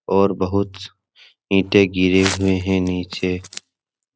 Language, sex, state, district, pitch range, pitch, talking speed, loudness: Hindi, male, Bihar, Supaul, 95-100 Hz, 95 Hz, 115 wpm, -19 LUFS